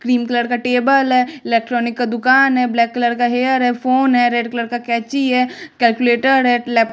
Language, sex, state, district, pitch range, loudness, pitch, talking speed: Hindi, female, Bihar, West Champaran, 240-255 Hz, -16 LUFS, 245 Hz, 210 wpm